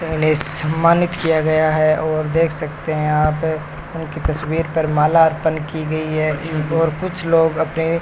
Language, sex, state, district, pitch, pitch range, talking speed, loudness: Hindi, male, Rajasthan, Bikaner, 160 Hz, 155-165 Hz, 180 wpm, -18 LUFS